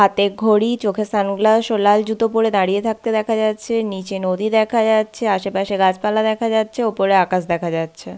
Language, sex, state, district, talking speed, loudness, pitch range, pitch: Bengali, female, West Bengal, Paschim Medinipur, 175 wpm, -18 LUFS, 195-220 Hz, 215 Hz